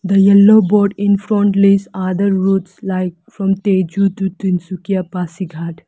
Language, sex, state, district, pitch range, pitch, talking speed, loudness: English, female, Arunachal Pradesh, Lower Dibang Valley, 185-200 Hz, 195 Hz, 145 wpm, -15 LUFS